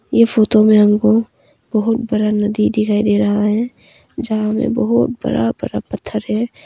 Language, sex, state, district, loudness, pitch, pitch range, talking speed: Hindi, female, Arunachal Pradesh, Longding, -16 LUFS, 215 Hz, 210-230 Hz, 160 wpm